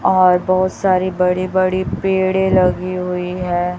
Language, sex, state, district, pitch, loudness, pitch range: Hindi, female, Chhattisgarh, Raipur, 185 Hz, -16 LUFS, 180-185 Hz